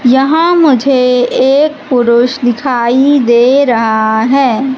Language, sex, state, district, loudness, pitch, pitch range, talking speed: Hindi, female, Madhya Pradesh, Katni, -9 LUFS, 255 Hz, 240-275 Hz, 100 wpm